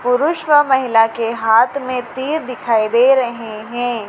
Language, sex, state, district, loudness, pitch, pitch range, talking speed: Hindi, female, Madhya Pradesh, Dhar, -16 LUFS, 245 Hz, 225-265 Hz, 160 wpm